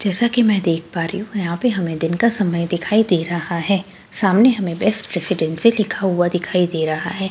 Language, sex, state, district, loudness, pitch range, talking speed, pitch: Hindi, female, Delhi, New Delhi, -18 LUFS, 170-210 Hz, 220 wpm, 190 Hz